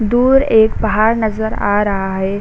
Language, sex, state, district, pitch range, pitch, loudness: Hindi, female, Bihar, Saran, 205-220 Hz, 220 Hz, -14 LUFS